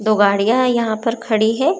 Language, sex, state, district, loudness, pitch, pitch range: Hindi, female, Maharashtra, Chandrapur, -16 LUFS, 225 Hz, 215-245 Hz